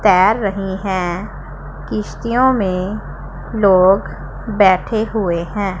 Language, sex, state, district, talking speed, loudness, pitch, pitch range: Hindi, female, Punjab, Pathankot, 95 wpm, -16 LUFS, 195 Hz, 185-215 Hz